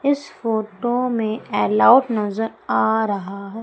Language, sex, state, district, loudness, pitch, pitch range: Hindi, female, Madhya Pradesh, Umaria, -20 LUFS, 220 Hz, 200-235 Hz